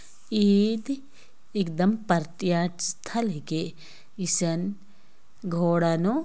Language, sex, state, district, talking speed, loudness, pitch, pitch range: Sadri, female, Chhattisgarh, Jashpur, 85 wpm, -26 LUFS, 185 Hz, 170-205 Hz